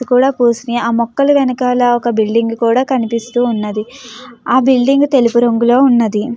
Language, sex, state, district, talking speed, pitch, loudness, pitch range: Telugu, female, Andhra Pradesh, Guntur, 140 wpm, 240 Hz, -13 LUFS, 230-255 Hz